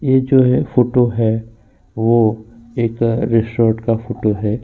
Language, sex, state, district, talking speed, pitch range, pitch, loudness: Hindi, male, Uttar Pradesh, Jyotiba Phule Nagar, 140 wpm, 110-125 Hz, 115 Hz, -16 LUFS